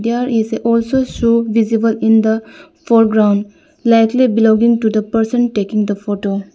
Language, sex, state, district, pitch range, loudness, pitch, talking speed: English, female, Arunachal Pradesh, Lower Dibang Valley, 220-235 Hz, -14 LUFS, 225 Hz, 155 wpm